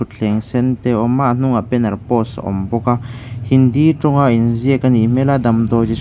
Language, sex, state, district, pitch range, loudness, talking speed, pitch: Mizo, male, Mizoram, Aizawl, 115-130 Hz, -15 LUFS, 230 wpm, 120 Hz